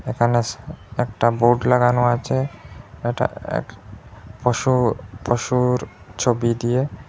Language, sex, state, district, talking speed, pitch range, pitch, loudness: Bengali, male, Assam, Hailakandi, 95 wpm, 120-125 Hz, 120 Hz, -21 LUFS